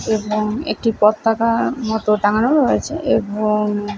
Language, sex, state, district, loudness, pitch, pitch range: Bengali, female, West Bengal, Malda, -18 LUFS, 215 Hz, 210-225 Hz